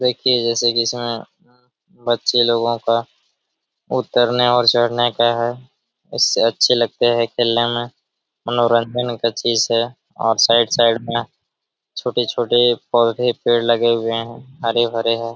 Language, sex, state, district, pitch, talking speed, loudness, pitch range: Hindi, male, Bihar, Araria, 120 Hz, 135 wpm, -17 LUFS, 115-120 Hz